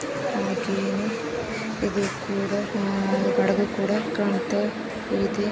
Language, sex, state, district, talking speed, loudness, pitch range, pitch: Kannada, female, Karnataka, Shimoga, 85 wpm, -25 LUFS, 195-205 Hz, 200 Hz